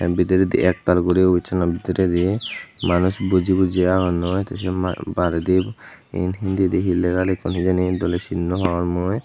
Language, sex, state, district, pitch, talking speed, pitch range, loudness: Chakma, male, Tripura, Unakoti, 90 Hz, 150 wpm, 90-95 Hz, -20 LUFS